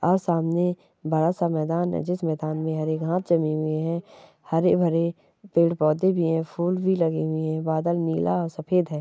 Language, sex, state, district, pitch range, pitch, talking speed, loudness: Hindi, female, Chhattisgarh, Sukma, 160-175 Hz, 165 Hz, 205 wpm, -24 LUFS